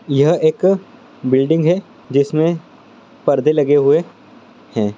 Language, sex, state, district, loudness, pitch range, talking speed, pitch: Hindi, male, Andhra Pradesh, Guntur, -16 LUFS, 140-170 Hz, 110 wpm, 155 Hz